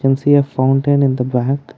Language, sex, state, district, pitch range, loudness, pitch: English, male, Karnataka, Bangalore, 130-140 Hz, -15 LUFS, 135 Hz